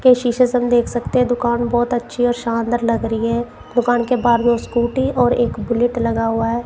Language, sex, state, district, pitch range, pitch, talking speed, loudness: Hindi, female, Punjab, Kapurthala, 235-245 Hz, 240 Hz, 235 wpm, -18 LUFS